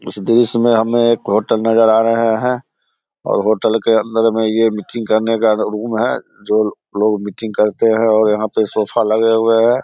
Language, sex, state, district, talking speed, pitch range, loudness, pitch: Hindi, male, Bihar, Samastipur, 200 wpm, 110-115 Hz, -15 LUFS, 110 Hz